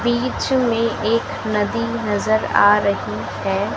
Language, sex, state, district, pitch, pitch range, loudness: Hindi, female, Madhya Pradesh, Dhar, 230 Hz, 210-235 Hz, -19 LUFS